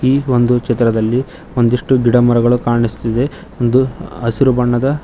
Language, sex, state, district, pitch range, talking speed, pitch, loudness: Kannada, male, Karnataka, Koppal, 120-130 Hz, 105 wpm, 120 Hz, -15 LUFS